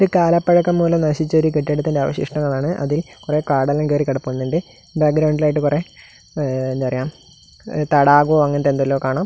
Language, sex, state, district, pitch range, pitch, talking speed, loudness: Malayalam, male, Kerala, Kasaragod, 140-155 Hz, 150 Hz, 145 wpm, -18 LUFS